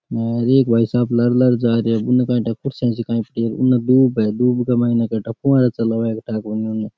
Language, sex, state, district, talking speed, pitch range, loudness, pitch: Rajasthani, male, Rajasthan, Nagaur, 105 wpm, 115-125 Hz, -18 LUFS, 120 Hz